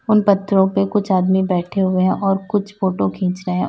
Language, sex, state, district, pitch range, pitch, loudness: Hindi, female, Uttar Pradesh, Lalitpur, 185-200 Hz, 190 Hz, -18 LUFS